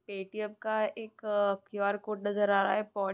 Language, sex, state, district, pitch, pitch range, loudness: Hindi, female, West Bengal, Purulia, 205 Hz, 200-215 Hz, -32 LUFS